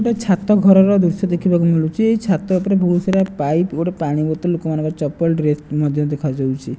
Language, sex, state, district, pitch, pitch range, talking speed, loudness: Odia, male, Odisha, Nuapada, 170 Hz, 150-190 Hz, 175 wpm, -17 LUFS